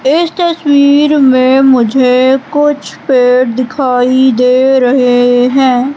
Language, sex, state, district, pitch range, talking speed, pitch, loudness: Hindi, female, Madhya Pradesh, Katni, 250-280 Hz, 100 wpm, 260 Hz, -9 LUFS